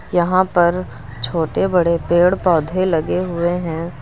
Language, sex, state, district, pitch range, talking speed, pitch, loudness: Hindi, female, Uttar Pradesh, Lucknow, 165-180 Hz, 135 wpm, 175 Hz, -17 LUFS